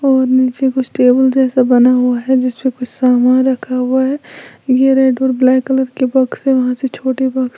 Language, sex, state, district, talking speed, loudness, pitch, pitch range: Hindi, female, Uttar Pradesh, Lalitpur, 215 wpm, -13 LUFS, 260 Hz, 255-265 Hz